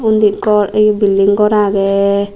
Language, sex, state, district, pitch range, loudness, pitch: Chakma, female, Tripura, Dhalai, 200-210 Hz, -12 LUFS, 205 Hz